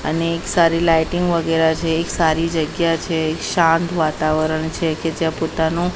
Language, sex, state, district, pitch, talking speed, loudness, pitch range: Gujarati, female, Gujarat, Gandhinagar, 165 Hz, 170 wpm, -18 LUFS, 160-170 Hz